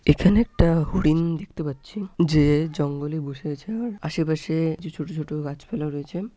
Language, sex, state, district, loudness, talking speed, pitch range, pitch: Bengali, male, West Bengal, Jalpaiguri, -24 LUFS, 150 wpm, 150-175 Hz, 160 Hz